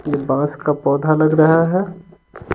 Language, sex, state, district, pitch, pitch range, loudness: Hindi, male, Bihar, Patna, 155 Hz, 145-165 Hz, -16 LUFS